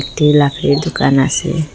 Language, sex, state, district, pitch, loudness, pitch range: Bengali, female, Assam, Hailakandi, 150 Hz, -14 LUFS, 140-160 Hz